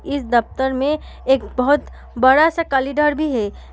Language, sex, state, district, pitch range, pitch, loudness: Hindi, female, Bihar, Samastipur, 260-295 Hz, 270 Hz, -18 LUFS